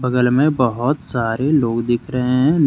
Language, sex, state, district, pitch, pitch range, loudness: Hindi, male, Jharkhand, Deoghar, 125 Hz, 120-145 Hz, -18 LUFS